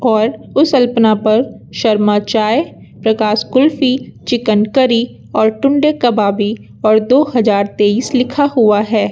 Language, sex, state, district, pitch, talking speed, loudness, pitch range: Hindi, female, Uttar Pradesh, Lucknow, 225 Hz, 130 wpm, -13 LUFS, 215-260 Hz